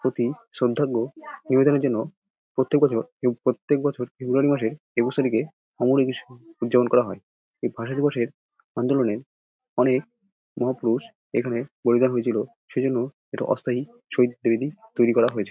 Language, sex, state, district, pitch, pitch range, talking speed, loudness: Bengali, male, West Bengal, Dakshin Dinajpur, 130 Hz, 120-140 Hz, 125 wpm, -24 LUFS